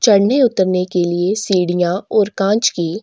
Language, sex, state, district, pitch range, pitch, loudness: Hindi, female, Chhattisgarh, Sukma, 175-210 Hz, 190 Hz, -16 LUFS